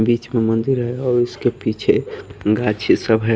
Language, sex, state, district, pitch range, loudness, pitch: Hindi, male, Haryana, Rohtak, 110-120 Hz, -19 LUFS, 115 Hz